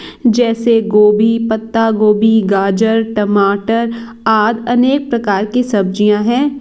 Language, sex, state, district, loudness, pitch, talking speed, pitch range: Hindi, female, Chhattisgarh, Bilaspur, -13 LUFS, 225 Hz, 110 wpm, 210-230 Hz